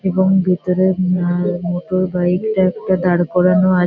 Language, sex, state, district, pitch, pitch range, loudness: Bengali, female, West Bengal, Kolkata, 185 Hz, 180-185 Hz, -16 LUFS